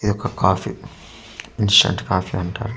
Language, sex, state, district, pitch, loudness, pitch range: Telugu, male, Andhra Pradesh, Manyam, 100 Hz, -18 LUFS, 95-110 Hz